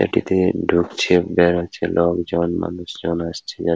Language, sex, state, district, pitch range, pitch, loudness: Bengali, male, West Bengal, Paschim Medinipur, 85-90 Hz, 85 Hz, -19 LUFS